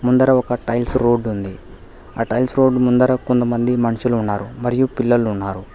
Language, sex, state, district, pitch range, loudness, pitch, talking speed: Telugu, male, Telangana, Hyderabad, 110-125 Hz, -18 LUFS, 120 Hz, 155 wpm